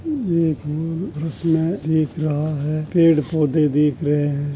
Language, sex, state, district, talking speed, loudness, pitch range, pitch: Hindi, male, Uttar Pradesh, Jalaun, 120 wpm, -20 LUFS, 150-165 Hz, 155 Hz